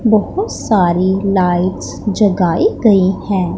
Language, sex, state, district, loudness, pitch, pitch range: Hindi, female, Punjab, Pathankot, -14 LUFS, 195 Hz, 180-210 Hz